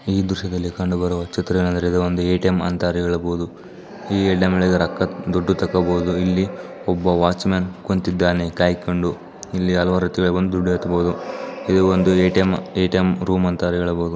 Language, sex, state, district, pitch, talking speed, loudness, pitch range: Kannada, male, Karnataka, Chamarajanagar, 90 Hz, 135 wpm, -20 LUFS, 90-95 Hz